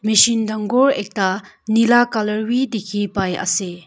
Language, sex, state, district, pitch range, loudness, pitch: Nagamese, female, Nagaland, Kohima, 195-230 Hz, -18 LUFS, 215 Hz